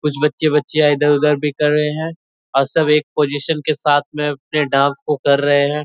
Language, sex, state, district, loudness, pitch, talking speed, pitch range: Hindi, male, Bihar, Purnia, -16 LUFS, 150 Hz, 225 wpm, 145-150 Hz